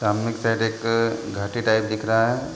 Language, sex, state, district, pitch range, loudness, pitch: Hindi, male, Uttar Pradesh, Deoria, 110-115 Hz, -23 LUFS, 115 Hz